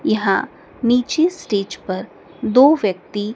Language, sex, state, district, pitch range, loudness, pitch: Hindi, male, Madhya Pradesh, Dhar, 200-270 Hz, -18 LUFS, 220 Hz